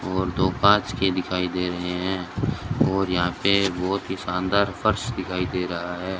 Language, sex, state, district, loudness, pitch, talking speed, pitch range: Hindi, male, Rajasthan, Bikaner, -24 LUFS, 95 Hz, 185 wpm, 90-100 Hz